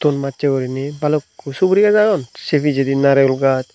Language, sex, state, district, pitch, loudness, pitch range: Chakma, male, Tripura, Unakoti, 140 Hz, -16 LUFS, 135-150 Hz